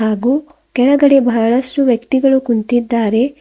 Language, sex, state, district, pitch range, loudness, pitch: Kannada, female, Karnataka, Bidar, 235-275 Hz, -14 LUFS, 255 Hz